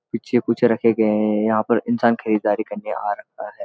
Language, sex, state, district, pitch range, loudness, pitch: Hindi, male, Uttarakhand, Uttarkashi, 105-115 Hz, -20 LUFS, 110 Hz